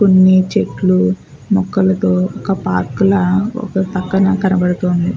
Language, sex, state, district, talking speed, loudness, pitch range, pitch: Telugu, female, Andhra Pradesh, Guntur, 105 wpm, -15 LUFS, 180-195 Hz, 190 Hz